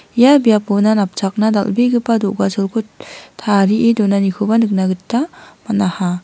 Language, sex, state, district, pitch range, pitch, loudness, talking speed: Garo, female, Meghalaya, West Garo Hills, 195-225 Hz, 210 Hz, -15 LUFS, 95 wpm